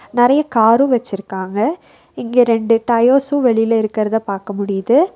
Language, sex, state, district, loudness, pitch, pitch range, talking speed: Tamil, female, Tamil Nadu, Nilgiris, -15 LUFS, 230 Hz, 215-250 Hz, 115 wpm